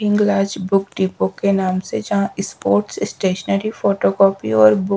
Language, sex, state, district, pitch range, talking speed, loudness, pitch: Hindi, female, Bihar, Patna, 185-200 Hz, 170 wpm, -18 LUFS, 195 Hz